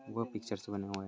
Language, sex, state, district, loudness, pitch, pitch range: Hindi, male, Maharashtra, Pune, -40 LUFS, 105 Hz, 100-115 Hz